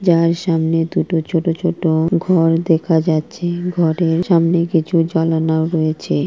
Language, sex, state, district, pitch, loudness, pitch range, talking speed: Bengali, male, West Bengal, Purulia, 165 Hz, -16 LUFS, 160-170 Hz, 125 wpm